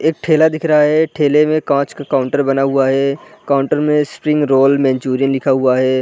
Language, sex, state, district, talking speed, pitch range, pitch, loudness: Hindi, male, Uttar Pradesh, Deoria, 210 wpm, 135-150 Hz, 140 Hz, -14 LUFS